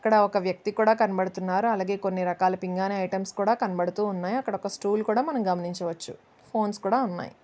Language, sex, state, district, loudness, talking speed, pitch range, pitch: Telugu, male, Telangana, Nalgonda, -26 LUFS, 160 wpm, 185-220 Hz, 195 Hz